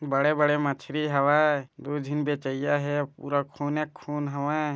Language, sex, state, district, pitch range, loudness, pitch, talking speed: Chhattisgarhi, male, Chhattisgarh, Bilaspur, 140-150 Hz, -27 LUFS, 145 Hz, 150 wpm